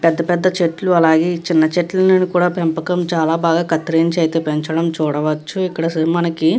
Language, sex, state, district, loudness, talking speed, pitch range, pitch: Telugu, female, Andhra Pradesh, Guntur, -16 LUFS, 155 wpm, 160-175 Hz, 165 Hz